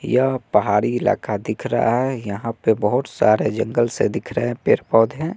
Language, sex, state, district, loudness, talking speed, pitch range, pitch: Hindi, male, Bihar, West Champaran, -20 LUFS, 180 wpm, 110-125 Hz, 115 Hz